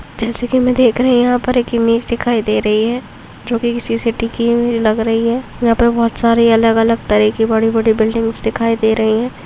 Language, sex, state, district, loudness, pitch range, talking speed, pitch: Hindi, female, Goa, North and South Goa, -14 LUFS, 225-235 Hz, 220 wpm, 230 Hz